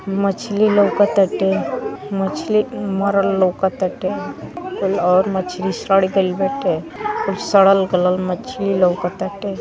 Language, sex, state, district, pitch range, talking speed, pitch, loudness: Bhojpuri, female, Uttar Pradesh, Ghazipur, 190-205 Hz, 95 wpm, 195 Hz, -18 LUFS